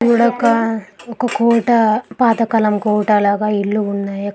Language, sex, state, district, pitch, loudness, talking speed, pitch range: Telugu, female, Andhra Pradesh, Guntur, 220 Hz, -15 LUFS, 125 wpm, 210-235 Hz